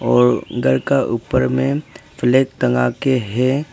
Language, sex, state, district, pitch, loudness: Hindi, male, Arunachal Pradesh, Papum Pare, 120 Hz, -17 LUFS